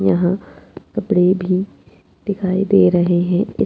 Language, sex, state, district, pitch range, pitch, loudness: Hindi, female, Chhattisgarh, Jashpur, 175-195 Hz, 185 Hz, -17 LUFS